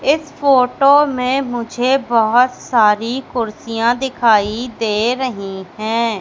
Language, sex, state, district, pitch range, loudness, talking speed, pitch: Hindi, female, Madhya Pradesh, Katni, 225-260 Hz, -16 LUFS, 105 wpm, 240 Hz